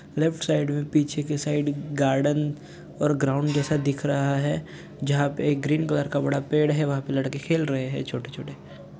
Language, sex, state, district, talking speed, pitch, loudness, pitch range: Hindi, male, Jharkhand, Sahebganj, 200 wpm, 145 Hz, -25 LUFS, 140-150 Hz